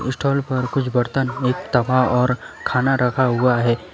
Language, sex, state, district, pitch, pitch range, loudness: Hindi, male, West Bengal, Alipurduar, 125 Hz, 125-135 Hz, -19 LUFS